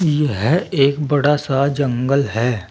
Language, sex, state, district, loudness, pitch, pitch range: Hindi, male, Uttar Pradesh, Saharanpur, -17 LUFS, 140 Hz, 130-145 Hz